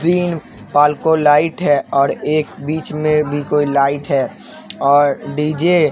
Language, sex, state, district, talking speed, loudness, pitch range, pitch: Hindi, male, Bihar, Katihar, 150 wpm, -16 LUFS, 145-155 Hz, 150 Hz